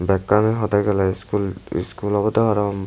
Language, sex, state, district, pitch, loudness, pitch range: Chakma, male, Tripura, West Tripura, 105 Hz, -20 LUFS, 95-105 Hz